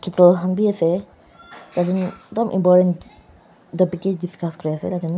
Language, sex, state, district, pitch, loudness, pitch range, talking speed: Nagamese, female, Nagaland, Dimapur, 180 Hz, -20 LUFS, 175-185 Hz, 150 wpm